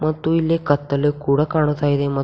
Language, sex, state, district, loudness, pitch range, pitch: Kannada, female, Karnataka, Bidar, -19 LUFS, 145-155 Hz, 145 Hz